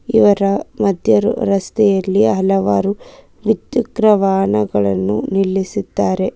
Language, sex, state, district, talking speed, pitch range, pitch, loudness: Kannada, female, Karnataka, Bangalore, 65 wpm, 185-205 Hz, 195 Hz, -16 LUFS